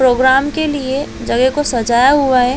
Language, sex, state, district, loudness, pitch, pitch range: Hindi, female, Chhattisgarh, Balrampur, -14 LUFS, 260 Hz, 250-285 Hz